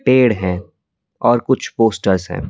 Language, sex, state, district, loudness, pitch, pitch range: Hindi, male, Delhi, New Delhi, -17 LUFS, 115 Hz, 95-125 Hz